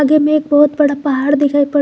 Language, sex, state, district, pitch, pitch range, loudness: Hindi, female, Jharkhand, Garhwa, 290 Hz, 285-295 Hz, -13 LUFS